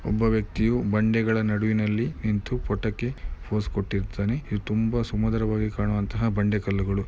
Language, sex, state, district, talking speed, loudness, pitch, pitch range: Kannada, male, Karnataka, Mysore, 120 wpm, -26 LUFS, 105 Hz, 105-110 Hz